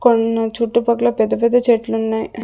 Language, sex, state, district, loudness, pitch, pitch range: Telugu, female, Andhra Pradesh, Sri Satya Sai, -17 LUFS, 230 Hz, 225-235 Hz